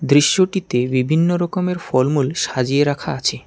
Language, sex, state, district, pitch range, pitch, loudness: Bengali, male, West Bengal, Alipurduar, 130-175 Hz, 145 Hz, -18 LUFS